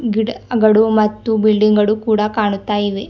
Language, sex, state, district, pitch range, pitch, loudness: Kannada, female, Karnataka, Bidar, 210-220 Hz, 215 Hz, -15 LUFS